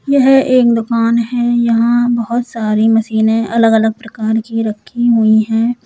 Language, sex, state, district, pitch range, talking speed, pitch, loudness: Hindi, female, Uttar Pradesh, Lalitpur, 220-240 Hz, 155 wpm, 230 Hz, -13 LUFS